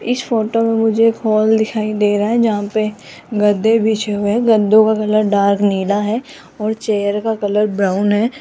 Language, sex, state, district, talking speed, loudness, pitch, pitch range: Hindi, female, Rajasthan, Jaipur, 200 wpm, -15 LUFS, 215 Hz, 205-225 Hz